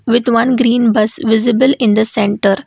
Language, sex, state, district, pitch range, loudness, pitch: English, female, Karnataka, Bangalore, 215-245 Hz, -12 LUFS, 230 Hz